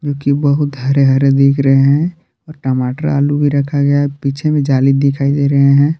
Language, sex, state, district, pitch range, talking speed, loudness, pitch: Hindi, male, Jharkhand, Palamu, 135-145 Hz, 210 wpm, -13 LUFS, 140 Hz